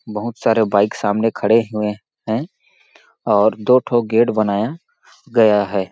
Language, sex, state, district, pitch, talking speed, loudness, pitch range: Hindi, male, Chhattisgarh, Balrampur, 110 Hz, 140 wpm, -17 LUFS, 105-120 Hz